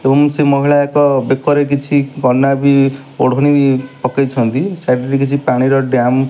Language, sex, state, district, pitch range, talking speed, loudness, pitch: Odia, male, Odisha, Malkangiri, 130-140 Hz, 150 wpm, -13 LUFS, 135 Hz